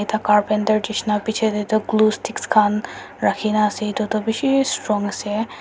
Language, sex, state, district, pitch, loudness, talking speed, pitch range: Nagamese, female, Nagaland, Dimapur, 215 Hz, -20 LUFS, 170 wpm, 210-220 Hz